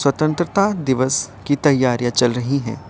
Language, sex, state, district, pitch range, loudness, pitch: Hindi, male, Uttar Pradesh, Varanasi, 120-150 Hz, -18 LUFS, 135 Hz